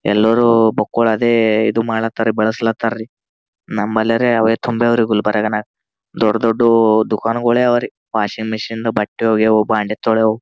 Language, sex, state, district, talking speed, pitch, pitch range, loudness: Kannada, male, Karnataka, Gulbarga, 110 wpm, 110 Hz, 110-115 Hz, -16 LUFS